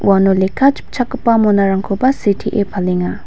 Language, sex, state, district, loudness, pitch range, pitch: Garo, female, Meghalaya, West Garo Hills, -15 LUFS, 195-245 Hz, 200 Hz